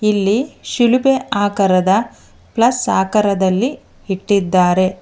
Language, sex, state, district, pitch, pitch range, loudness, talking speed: Kannada, female, Karnataka, Bangalore, 205 Hz, 190-240 Hz, -15 LUFS, 70 wpm